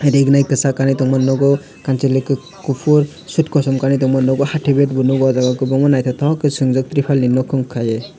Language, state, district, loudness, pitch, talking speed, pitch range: Kokborok, Tripura, West Tripura, -16 LUFS, 135 Hz, 200 wpm, 130-145 Hz